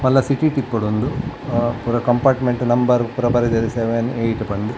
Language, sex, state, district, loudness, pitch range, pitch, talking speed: Tulu, male, Karnataka, Dakshina Kannada, -19 LUFS, 115-125 Hz, 120 Hz, 165 wpm